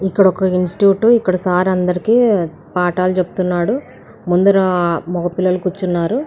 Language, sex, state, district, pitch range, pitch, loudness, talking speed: Telugu, female, Andhra Pradesh, Anantapur, 180-195 Hz, 185 Hz, -15 LUFS, 135 wpm